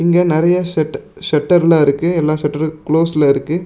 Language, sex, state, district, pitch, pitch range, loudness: Tamil, male, Tamil Nadu, Namakkal, 160 Hz, 155-170 Hz, -15 LUFS